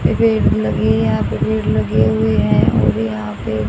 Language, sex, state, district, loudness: Hindi, female, Haryana, Charkhi Dadri, -16 LUFS